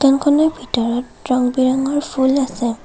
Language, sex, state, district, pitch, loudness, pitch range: Assamese, female, Assam, Kamrup Metropolitan, 260 Hz, -17 LUFS, 250-280 Hz